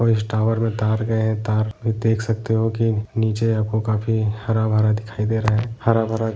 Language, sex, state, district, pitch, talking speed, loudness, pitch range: Hindi, male, Bihar, Jahanabad, 110 Hz, 225 wpm, -21 LUFS, 110-115 Hz